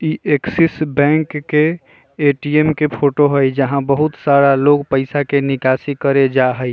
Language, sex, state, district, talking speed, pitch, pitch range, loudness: Bajjika, male, Bihar, Vaishali, 160 wpm, 145 Hz, 135-150 Hz, -15 LUFS